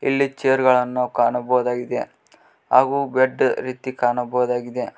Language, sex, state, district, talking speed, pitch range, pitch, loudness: Kannada, male, Karnataka, Koppal, 95 wpm, 125-130 Hz, 125 Hz, -20 LUFS